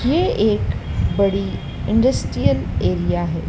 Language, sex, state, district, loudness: Hindi, female, Madhya Pradesh, Dhar, -19 LUFS